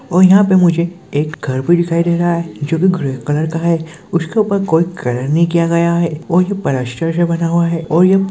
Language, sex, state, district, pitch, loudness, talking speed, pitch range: Hindi, male, Chhattisgarh, Kabirdham, 170 Hz, -15 LUFS, 230 wpm, 160-175 Hz